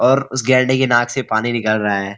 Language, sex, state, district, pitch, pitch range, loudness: Hindi, male, Uttarakhand, Uttarkashi, 120 Hz, 110-130 Hz, -16 LUFS